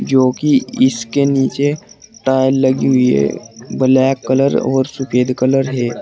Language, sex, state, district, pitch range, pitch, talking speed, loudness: Hindi, male, Uttar Pradesh, Saharanpur, 130-135 Hz, 130 Hz, 130 wpm, -15 LUFS